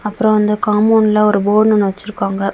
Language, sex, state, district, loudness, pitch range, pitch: Tamil, female, Tamil Nadu, Kanyakumari, -14 LUFS, 205-215 Hz, 210 Hz